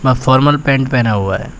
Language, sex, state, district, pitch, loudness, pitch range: Hindi, male, Uttar Pradesh, Shamli, 130 Hz, -13 LUFS, 120-135 Hz